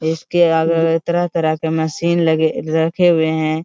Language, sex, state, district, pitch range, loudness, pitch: Hindi, male, Jharkhand, Sahebganj, 160-170 Hz, -16 LUFS, 160 Hz